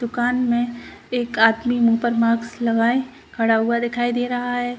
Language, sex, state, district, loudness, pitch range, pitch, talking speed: Hindi, female, Chhattisgarh, Rajnandgaon, -20 LUFS, 230-245 Hz, 240 Hz, 175 wpm